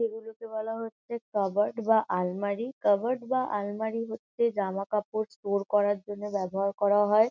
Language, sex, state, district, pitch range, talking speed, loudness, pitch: Bengali, female, West Bengal, Kolkata, 205-225 Hz, 150 wpm, -29 LUFS, 210 Hz